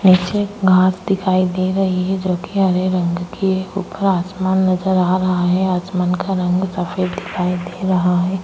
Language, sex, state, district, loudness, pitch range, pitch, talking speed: Hindi, female, Goa, North and South Goa, -18 LUFS, 180-190 Hz, 185 Hz, 185 wpm